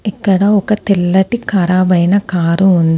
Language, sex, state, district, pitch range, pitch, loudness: Telugu, female, Telangana, Komaram Bheem, 180-205 Hz, 190 Hz, -12 LUFS